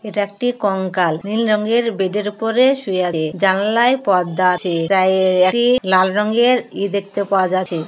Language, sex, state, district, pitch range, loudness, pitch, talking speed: Bengali, female, West Bengal, Kolkata, 185-225 Hz, -17 LUFS, 200 Hz, 145 wpm